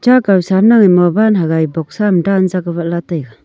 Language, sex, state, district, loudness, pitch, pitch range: Wancho, female, Arunachal Pradesh, Longding, -12 LUFS, 180 Hz, 170-200 Hz